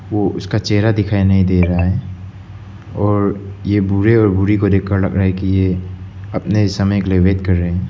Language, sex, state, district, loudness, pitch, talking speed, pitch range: Hindi, male, Arunachal Pradesh, Lower Dibang Valley, -16 LUFS, 100 Hz, 205 wpm, 95-100 Hz